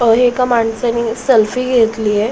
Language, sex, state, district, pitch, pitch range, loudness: Marathi, female, Maharashtra, Solapur, 235 Hz, 225-245 Hz, -14 LUFS